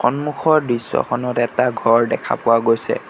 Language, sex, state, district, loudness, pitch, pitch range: Assamese, male, Assam, Sonitpur, -18 LUFS, 120 Hz, 115-125 Hz